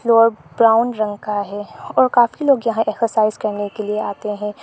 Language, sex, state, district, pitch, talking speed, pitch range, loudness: Hindi, female, Arunachal Pradesh, Lower Dibang Valley, 215 Hz, 205 wpm, 210-230 Hz, -18 LUFS